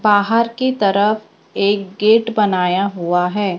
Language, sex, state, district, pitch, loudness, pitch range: Hindi, female, Maharashtra, Gondia, 205 Hz, -16 LUFS, 195-220 Hz